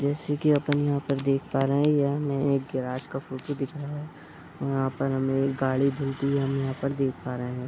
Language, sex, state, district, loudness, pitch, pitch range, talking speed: Hindi, male, Bihar, Bhagalpur, -27 LUFS, 140 Hz, 135-145 Hz, 240 wpm